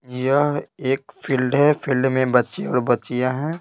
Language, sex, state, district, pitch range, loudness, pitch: Hindi, male, Bihar, Patna, 125-145 Hz, -20 LUFS, 135 Hz